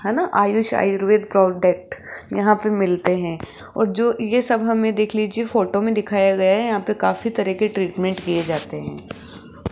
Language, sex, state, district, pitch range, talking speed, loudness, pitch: Hindi, female, Rajasthan, Jaipur, 185-215 Hz, 185 wpm, -20 LUFS, 205 Hz